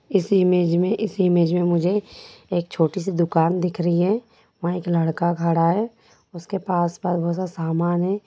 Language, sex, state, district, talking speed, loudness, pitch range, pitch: Hindi, female, Bihar, Sitamarhi, 175 wpm, -21 LUFS, 170-190 Hz, 175 Hz